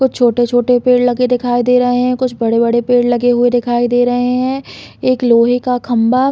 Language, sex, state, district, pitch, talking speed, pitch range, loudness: Hindi, female, Chhattisgarh, Balrampur, 245 Hz, 230 wpm, 240-250 Hz, -13 LUFS